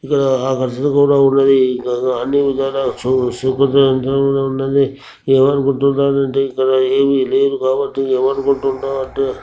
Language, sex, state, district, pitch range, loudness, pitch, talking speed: Telugu, male, Telangana, Nalgonda, 130-140 Hz, -15 LUFS, 135 Hz, 55 wpm